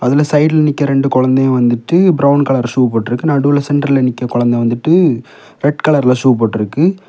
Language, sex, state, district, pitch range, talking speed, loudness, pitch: Tamil, male, Tamil Nadu, Kanyakumari, 125-150 Hz, 170 wpm, -12 LUFS, 135 Hz